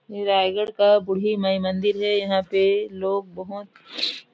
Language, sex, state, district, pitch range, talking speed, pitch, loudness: Hindi, female, Chhattisgarh, Raigarh, 190-205 Hz, 165 wpm, 200 Hz, -22 LUFS